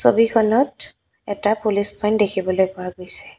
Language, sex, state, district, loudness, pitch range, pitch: Assamese, female, Assam, Kamrup Metropolitan, -20 LUFS, 190-215 Hz, 205 Hz